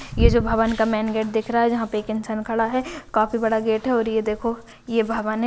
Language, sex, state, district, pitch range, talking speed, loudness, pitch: Hindi, female, Rajasthan, Nagaur, 220-230 Hz, 275 wpm, -22 LUFS, 225 Hz